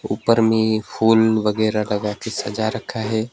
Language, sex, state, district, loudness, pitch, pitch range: Hindi, male, West Bengal, Alipurduar, -19 LUFS, 110 Hz, 105-110 Hz